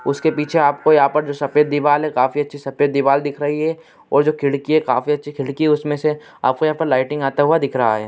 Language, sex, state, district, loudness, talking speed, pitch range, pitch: Hindi, male, Bihar, Begusarai, -18 LUFS, 260 wpm, 140-150 Hz, 145 Hz